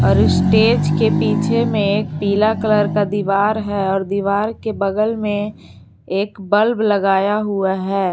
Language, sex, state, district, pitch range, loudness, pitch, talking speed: Hindi, female, Jharkhand, Garhwa, 195-210 Hz, -17 LUFS, 200 Hz, 150 wpm